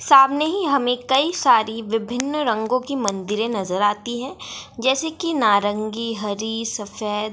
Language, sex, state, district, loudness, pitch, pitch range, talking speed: Hindi, female, Bihar, Gaya, -21 LUFS, 230 Hz, 215-270 Hz, 140 wpm